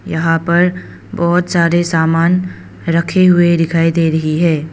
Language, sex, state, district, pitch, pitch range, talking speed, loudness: Hindi, female, Arunachal Pradesh, Papum Pare, 170 Hz, 165-175 Hz, 140 wpm, -13 LUFS